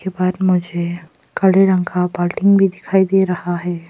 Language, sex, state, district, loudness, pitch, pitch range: Hindi, female, Arunachal Pradesh, Papum Pare, -16 LUFS, 180 Hz, 175-190 Hz